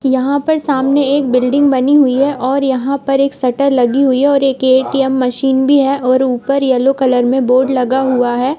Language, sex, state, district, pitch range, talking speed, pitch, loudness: Hindi, female, Uttar Pradesh, Budaun, 255-275 Hz, 195 wpm, 265 Hz, -13 LUFS